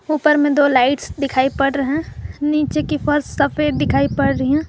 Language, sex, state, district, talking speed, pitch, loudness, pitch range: Hindi, female, Jharkhand, Garhwa, 205 wpm, 285 Hz, -17 LUFS, 275-300 Hz